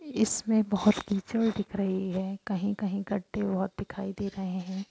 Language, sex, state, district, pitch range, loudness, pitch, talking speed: Hindi, female, Bihar, Saran, 195-210 Hz, -30 LUFS, 200 Hz, 170 wpm